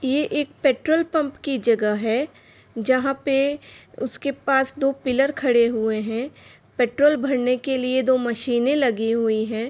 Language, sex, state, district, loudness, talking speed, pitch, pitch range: Hindi, female, Bihar, Madhepura, -22 LUFS, 155 wpm, 260 Hz, 235-280 Hz